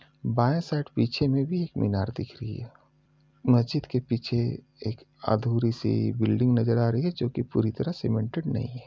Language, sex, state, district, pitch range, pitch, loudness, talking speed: Hindi, male, Uttar Pradesh, Muzaffarnagar, 115-145 Hz, 120 Hz, -27 LUFS, 195 wpm